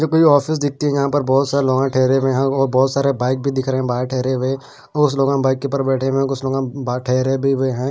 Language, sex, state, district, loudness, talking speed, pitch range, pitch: Hindi, male, Punjab, Pathankot, -18 LUFS, 295 wpm, 130-140 Hz, 135 Hz